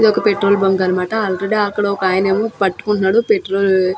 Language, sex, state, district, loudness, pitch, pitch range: Telugu, female, Andhra Pradesh, Krishna, -16 LUFS, 200 Hz, 190-210 Hz